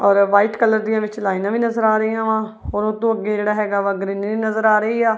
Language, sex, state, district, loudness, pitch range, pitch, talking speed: Punjabi, female, Punjab, Kapurthala, -18 LUFS, 205-220 Hz, 215 Hz, 265 wpm